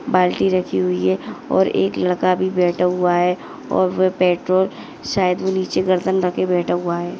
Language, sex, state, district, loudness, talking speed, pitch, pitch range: Hindi, female, Maharashtra, Dhule, -19 LUFS, 185 wpm, 180 Hz, 175-185 Hz